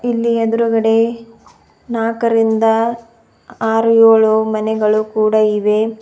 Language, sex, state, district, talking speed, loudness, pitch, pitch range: Kannada, female, Karnataka, Bidar, 80 wpm, -14 LUFS, 225 Hz, 220-230 Hz